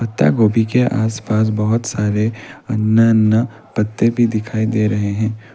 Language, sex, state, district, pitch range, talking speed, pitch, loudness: Hindi, male, Assam, Kamrup Metropolitan, 110-115 Hz, 150 wpm, 110 Hz, -16 LUFS